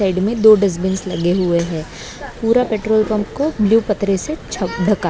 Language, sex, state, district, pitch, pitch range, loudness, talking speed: Hindi, female, Maharashtra, Mumbai Suburban, 205 Hz, 185-225 Hz, -17 LUFS, 190 wpm